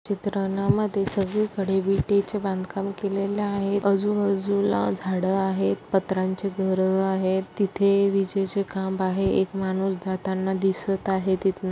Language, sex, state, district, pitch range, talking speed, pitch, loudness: Marathi, female, Maharashtra, Aurangabad, 190-200 Hz, 120 wpm, 195 Hz, -24 LUFS